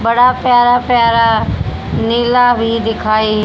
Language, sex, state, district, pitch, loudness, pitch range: Hindi, female, Haryana, Charkhi Dadri, 230 Hz, -12 LUFS, 225-245 Hz